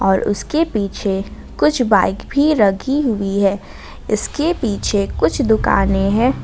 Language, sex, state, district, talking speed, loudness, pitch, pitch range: Hindi, female, Jharkhand, Ranchi, 130 wpm, -17 LUFS, 210 Hz, 195-270 Hz